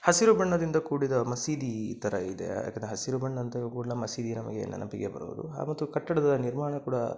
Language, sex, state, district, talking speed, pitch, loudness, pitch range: Kannada, male, Karnataka, Dakshina Kannada, 150 wpm, 130 Hz, -30 LUFS, 120-155 Hz